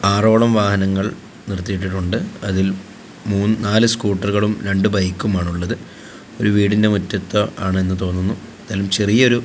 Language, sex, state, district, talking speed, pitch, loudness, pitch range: Malayalam, male, Kerala, Kozhikode, 115 wpm, 100 Hz, -18 LUFS, 95-105 Hz